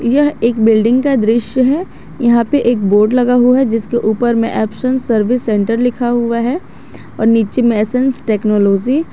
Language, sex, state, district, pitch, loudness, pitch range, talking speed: Hindi, female, Jharkhand, Garhwa, 235 Hz, -13 LUFS, 220-255 Hz, 185 wpm